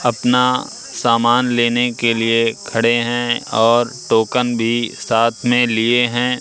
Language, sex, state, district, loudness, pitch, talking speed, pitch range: Hindi, male, Madhya Pradesh, Katni, -16 LUFS, 120 Hz, 130 wpm, 115-120 Hz